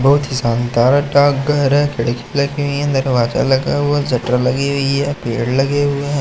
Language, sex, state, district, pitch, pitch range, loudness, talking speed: Hindi, male, Madhya Pradesh, Katni, 140 Hz, 125-145 Hz, -16 LUFS, 205 wpm